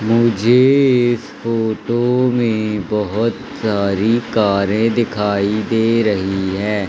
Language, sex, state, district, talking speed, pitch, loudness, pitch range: Hindi, male, Madhya Pradesh, Katni, 95 wpm, 110 Hz, -16 LUFS, 105-115 Hz